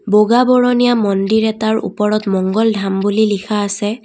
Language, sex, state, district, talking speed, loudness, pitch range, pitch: Assamese, female, Assam, Kamrup Metropolitan, 150 wpm, -14 LUFS, 205-225 Hz, 215 Hz